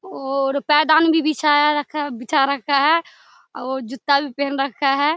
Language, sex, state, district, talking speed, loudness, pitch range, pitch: Maithili, female, Bihar, Samastipur, 175 wpm, -19 LUFS, 275-300 Hz, 285 Hz